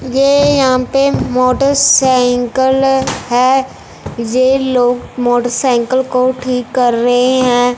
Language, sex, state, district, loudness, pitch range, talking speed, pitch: Hindi, female, Punjab, Fazilka, -12 LUFS, 245-265 Hz, 100 wpm, 255 Hz